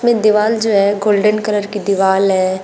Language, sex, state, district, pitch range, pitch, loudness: Hindi, female, Uttar Pradesh, Shamli, 195-215 Hz, 205 Hz, -14 LUFS